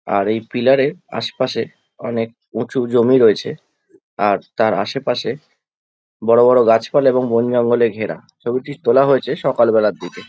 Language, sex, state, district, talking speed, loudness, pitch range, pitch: Bengali, male, West Bengal, Jhargram, 140 wpm, -17 LUFS, 115-135 Hz, 120 Hz